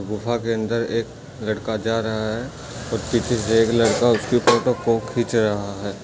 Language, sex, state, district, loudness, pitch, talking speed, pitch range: Hindi, male, Bihar, Darbhanga, -21 LUFS, 115 Hz, 190 wpm, 110-120 Hz